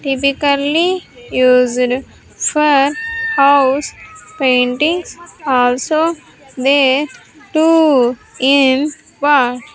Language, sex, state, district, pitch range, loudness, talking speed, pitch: English, female, Andhra Pradesh, Sri Satya Sai, 255-310 Hz, -14 LUFS, 60 wpm, 280 Hz